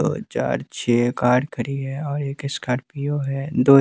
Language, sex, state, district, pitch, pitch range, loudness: Hindi, male, Bihar, West Champaran, 135 Hz, 125-140 Hz, -22 LUFS